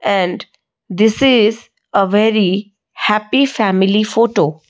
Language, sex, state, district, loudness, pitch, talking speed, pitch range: English, female, Odisha, Malkangiri, -14 LUFS, 215 Hz, 115 wpm, 200-225 Hz